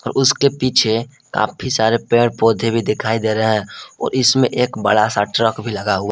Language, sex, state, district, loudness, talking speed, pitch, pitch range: Hindi, male, Jharkhand, Palamu, -17 LUFS, 195 wpm, 115 Hz, 110-125 Hz